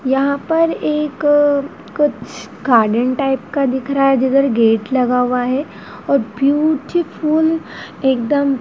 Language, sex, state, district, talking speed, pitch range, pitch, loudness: Hindi, female, Madhya Pradesh, Dhar, 125 wpm, 255-295 Hz, 275 Hz, -16 LUFS